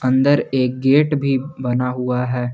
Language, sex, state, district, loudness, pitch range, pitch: Hindi, male, Jharkhand, Garhwa, -18 LUFS, 125-140 Hz, 130 Hz